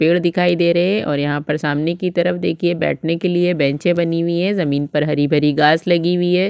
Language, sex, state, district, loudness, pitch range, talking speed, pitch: Hindi, female, Chhattisgarh, Sukma, -17 LUFS, 150-175 Hz, 240 wpm, 170 Hz